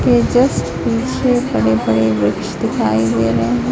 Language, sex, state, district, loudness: Hindi, female, Chhattisgarh, Raipur, -16 LUFS